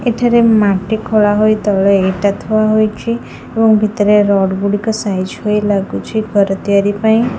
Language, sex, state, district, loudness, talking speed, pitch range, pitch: Odia, female, Odisha, Khordha, -13 LUFS, 145 wpm, 200-220 Hz, 210 Hz